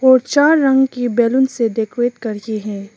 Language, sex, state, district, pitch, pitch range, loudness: Hindi, female, Arunachal Pradesh, Papum Pare, 240 Hz, 225-265 Hz, -16 LUFS